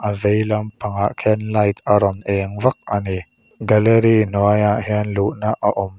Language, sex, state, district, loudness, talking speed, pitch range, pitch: Mizo, male, Mizoram, Aizawl, -18 LUFS, 190 wpm, 100-110 Hz, 105 Hz